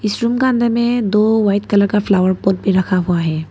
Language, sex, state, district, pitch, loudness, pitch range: Hindi, female, Arunachal Pradesh, Papum Pare, 205 Hz, -15 LUFS, 185-230 Hz